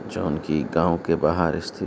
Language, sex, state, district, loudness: Hindi, male, Uttar Pradesh, Gorakhpur, -23 LUFS